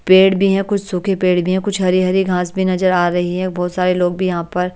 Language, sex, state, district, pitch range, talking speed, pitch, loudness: Hindi, male, Delhi, New Delhi, 180-190 Hz, 275 wpm, 185 Hz, -16 LUFS